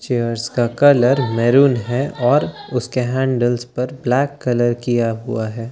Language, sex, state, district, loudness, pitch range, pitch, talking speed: Hindi, male, Bihar, Katihar, -17 LUFS, 120-130 Hz, 125 Hz, 155 wpm